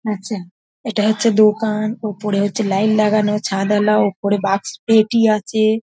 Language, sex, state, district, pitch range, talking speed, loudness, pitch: Bengali, female, West Bengal, North 24 Parganas, 205-220 Hz, 135 wpm, -17 LUFS, 210 Hz